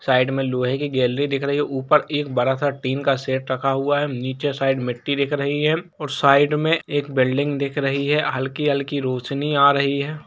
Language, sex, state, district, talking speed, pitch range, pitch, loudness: Hindi, male, Jharkhand, Jamtara, 220 wpm, 135-145 Hz, 140 Hz, -21 LUFS